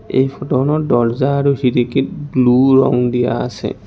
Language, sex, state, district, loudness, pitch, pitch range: Assamese, male, Assam, Kamrup Metropolitan, -15 LUFS, 130 Hz, 125-140 Hz